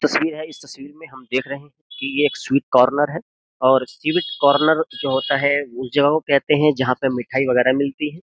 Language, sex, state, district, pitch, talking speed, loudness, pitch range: Hindi, male, Uttar Pradesh, Jyotiba Phule Nagar, 140 Hz, 220 wpm, -19 LUFS, 130-150 Hz